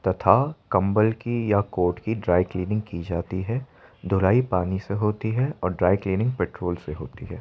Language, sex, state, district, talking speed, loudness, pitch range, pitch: Hindi, male, Uttar Pradesh, Jyotiba Phule Nagar, 185 wpm, -24 LUFS, 90-110 Hz, 95 Hz